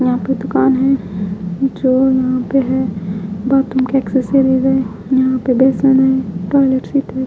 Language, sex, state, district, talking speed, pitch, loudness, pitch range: Hindi, female, Haryana, Charkhi Dadri, 75 wpm, 260 Hz, -15 LUFS, 245-265 Hz